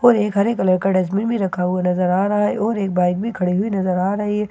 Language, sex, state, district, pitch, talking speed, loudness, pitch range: Hindi, female, Bihar, Katihar, 195 Hz, 330 wpm, -19 LUFS, 185-210 Hz